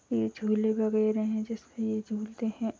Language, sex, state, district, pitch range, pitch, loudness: Hindi, female, Uttarakhand, Uttarkashi, 215-220 Hz, 215 Hz, -30 LUFS